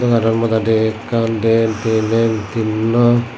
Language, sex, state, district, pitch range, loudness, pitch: Chakma, male, Tripura, Dhalai, 110-115 Hz, -16 LUFS, 115 Hz